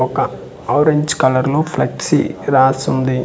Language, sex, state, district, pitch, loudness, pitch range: Telugu, male, Andhra Pradesh, Manyam, 135 Hz, -16 LUFS, 130-150 Hz